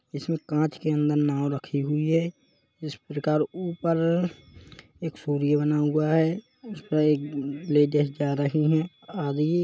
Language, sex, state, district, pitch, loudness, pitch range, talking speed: Hindi, male, Chhattisgarh, Rajnandgaon, 150 Hz, -26 LUFS, 145-165 Hz, 155 wpm